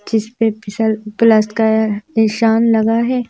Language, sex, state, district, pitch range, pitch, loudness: Hindi, female, Madhya Pradesh, Bhopal, 215-230 Hz, 220 Hz, -15 LUFS